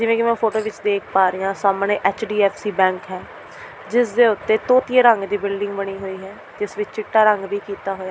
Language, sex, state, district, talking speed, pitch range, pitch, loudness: Punjabi, female, Delhi, New Delhi, 230 wpm, 195-220 Hz, 205 Hz, -19 LUFS